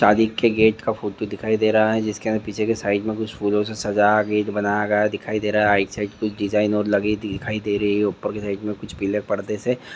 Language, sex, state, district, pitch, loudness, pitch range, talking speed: Hindi, male, Andhra Pradesh, Visakhapatnam, 105 Hz, -21 LUFS, 105-110 Hz, 195 wpm